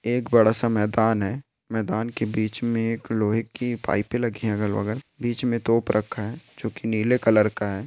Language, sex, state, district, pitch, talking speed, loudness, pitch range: Hindi, male, Rajasthan, Churu, 115 Hz, 205 wpm, -24 LUFS, 105-120 Hz